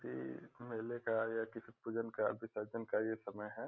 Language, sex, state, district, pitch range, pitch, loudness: Hindi, male, Bihar, Gopalganj, 105-115 Hz, 115 Hz, -42 LUFS